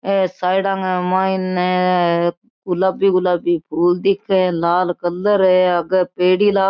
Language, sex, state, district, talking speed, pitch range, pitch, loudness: Marwari, female, Rajasthan, Nagaur, 145 wpm, 175-190 Hz, 185 Hz, -17 LUFS